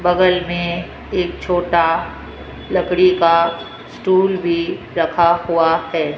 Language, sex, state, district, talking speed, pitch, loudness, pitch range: Hindi, female, Rajasthan, Jaipur, 105 wpm, 170 Hz, -17 LUFS, 165-180 Hz